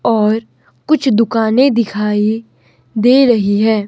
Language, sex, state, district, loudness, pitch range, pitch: Hindi, male, Himachal Pradesh, Shimla, -13 LUFS, 210-240 Hz, 225 Hz